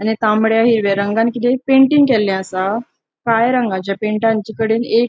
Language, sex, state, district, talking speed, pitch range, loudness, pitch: Konkani, female, Goa, North and South Goa, 155 wpm, 215-240 Hz, -15 LUFS, 225 Hz